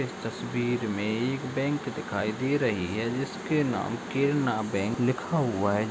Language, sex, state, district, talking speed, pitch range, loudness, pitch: Hindi, male, Uttar Pradesh, Deoria, 165 wpm, 110-135 Hz, -28 LUFS, 125 Hz